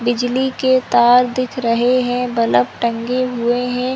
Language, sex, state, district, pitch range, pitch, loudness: Hindi, female, Chhattisgarh, Korba, 240-255 Hz, 245 Hz, -16 LUFS